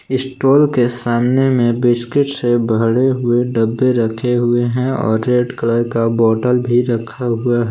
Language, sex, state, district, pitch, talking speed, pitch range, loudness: Hindi, male, Jharkhand, Palamu, 120 Hz, 155 wpm, 115-125 Hz, -15 LUFS